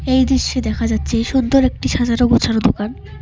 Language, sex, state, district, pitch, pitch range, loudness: Bengali, female, West Bengal, Cooch Behar, 240 Hz, 210-260 Hz, -17 LUFS